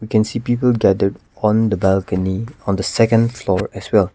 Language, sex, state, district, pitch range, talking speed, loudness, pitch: English, male, Nagaland, Kohima, 95-115 Hz, 190 wpm, -18 LUFS, 105 Hz